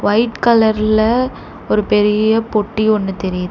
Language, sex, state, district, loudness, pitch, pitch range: Tamil, female, Tamil Nadu, Chennai, -15 LUFS, 215 Hz, 210-225 Hz